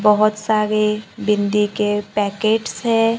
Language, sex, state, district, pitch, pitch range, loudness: Hindi, male, Maharashtra, Gondia, 210 Hz, 210-220 Hz, -18 LUFS